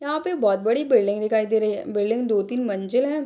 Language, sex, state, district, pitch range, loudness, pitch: Hindi, female, Bihar, Darbhanga, 205-255 Hz, -22 LUFS, 220 Hz